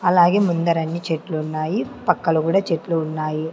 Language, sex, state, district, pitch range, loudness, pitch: Telugu, female, Andhra Pradesh, Sri Satya Sai, 160-180 Hz, -20 LUFS, 165 Hz